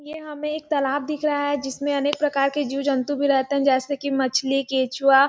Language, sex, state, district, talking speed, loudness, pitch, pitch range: Hindi, female, Chhattisgarh, Sarguja, 225 wpm, -23 LUFS, 280 Hz, 270-290 Hz